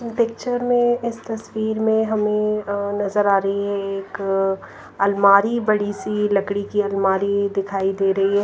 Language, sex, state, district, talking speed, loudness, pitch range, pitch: Hindi, female, Punjab, Pathankot, 155 wpm, -20 LUFS, 195-220 Hz, 205 Hz